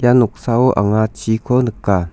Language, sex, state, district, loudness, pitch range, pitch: Garo, male, Meghalaya, South Garo Hills, -16 LUFS, 105-125 Hz, 110 Hz